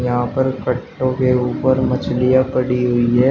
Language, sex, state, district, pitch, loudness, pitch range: Hindi, male, Uttar Pradesh, Shamli, 125 Hz, -17 LUFS, 125-130 Hz